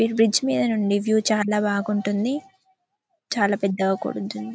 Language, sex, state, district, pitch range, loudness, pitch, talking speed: Telugu, female, Telangana, Karimnagar, 200-265 Hz, -22 LUFS, 210 Hz, 130 wpm